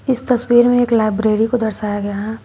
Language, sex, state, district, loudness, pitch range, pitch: Hindi, female, Uttar Pradesh, Shamli, -16 LUFS, 215-245 Hz, 225 Hz